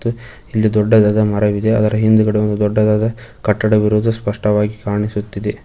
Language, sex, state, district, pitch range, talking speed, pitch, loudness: Kannada, male, Karnataka, Koppal, 105-110 Hz, 105 wpm, 105 Hz, -16 LUFS